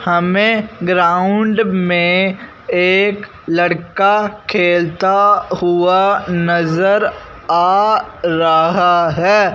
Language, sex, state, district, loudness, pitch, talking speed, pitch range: Hindi, male, Punjab, Fazilka, -14 LUFS, 185 Hz, 70 wpm, 175-205 Hz